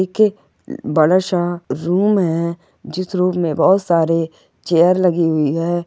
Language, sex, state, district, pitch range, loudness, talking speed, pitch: Hindi, female, Goa, North and South Goa, 165-185 Hz, -17 LUFS, 145 wpm, 175 Hz